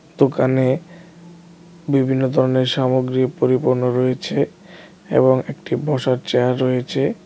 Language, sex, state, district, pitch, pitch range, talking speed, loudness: Bengali, male, Tripura, West Tripura, 130 Hz, 130-150 Hz, 100 wpm, -19 LUFS